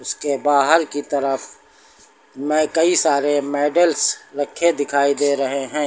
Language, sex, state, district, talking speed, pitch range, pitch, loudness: Hindi, male, Uttar Pradesh, Lucknow, 135 wpm, 140-170 Hz, 145 Hz, -19 LUFS